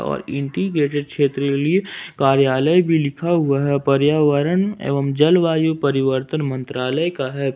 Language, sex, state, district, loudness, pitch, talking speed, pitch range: Hindi, male, Jharkhand, Ranchi, -18 LUFS, 145 Hz, 120 wpm, 140-160 Hz